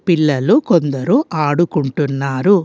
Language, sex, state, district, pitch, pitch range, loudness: Telugu, female, Telangana, Hyderabad, 155 Hz, 140-180 Hz, -15 LUFS